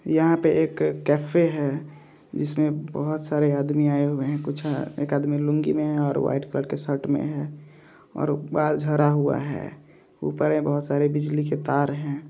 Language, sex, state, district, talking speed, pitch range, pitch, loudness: Hindi, male, Andhra Pradesh, Visakhapatnam, 190 wpm, 145-150 Hz, 150 Hz, -24 LUFS